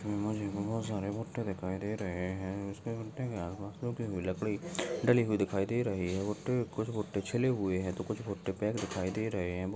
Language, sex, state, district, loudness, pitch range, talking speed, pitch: Hindi, male, Goa, North and South Goa, -35 LUFS, 95-115 Hz, 165 wpm, 105 Hz